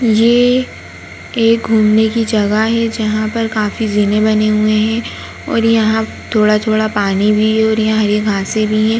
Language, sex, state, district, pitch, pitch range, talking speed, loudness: Hindi, female, Bihar, Jahanabad, 215 Hz, 215-225 Hz, 160 wpm, -14 LUFS